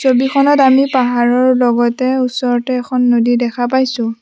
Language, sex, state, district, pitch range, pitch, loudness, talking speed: Assamese, female, Assam, Sonitpur, 240-260 Hz, 250 Hz, -13 LUFS, 130 wpm